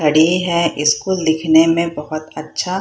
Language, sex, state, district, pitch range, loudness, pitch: Hindi, female, Bihar, Purnia, 155-170 Hz, -16 LUFS, 160 Hz